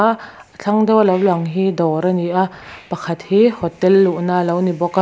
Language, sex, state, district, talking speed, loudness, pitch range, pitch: Mizo, female, Mizoram, Aizawl, 225 wpm, -16 LUFS, 175-195 Hz, 185 Hz